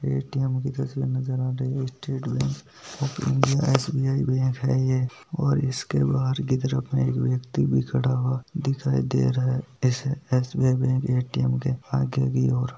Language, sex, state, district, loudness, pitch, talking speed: Hindi, male, Rajasthan, Nagaur, -25 LUFS, 130 Hz, 180 wpm